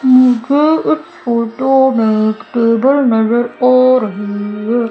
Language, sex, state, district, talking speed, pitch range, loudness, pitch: Hindi, female, Madhya Pradesh, Umaria, 110 wpm, 225-265 Hz, -13 LUFS, 240 Hz